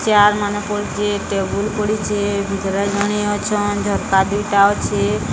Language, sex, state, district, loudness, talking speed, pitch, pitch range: Odia, female, Odisha, Sambalpur, -18 LUFS, 110 wpm, 205 Hz, 200-210 Hz